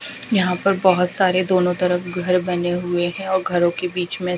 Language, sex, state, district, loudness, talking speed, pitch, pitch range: Hindi, female, Himachal Pradesh, Shimla, -19 LUFS, 205 wpm, 180 Hz, 180-185 Hz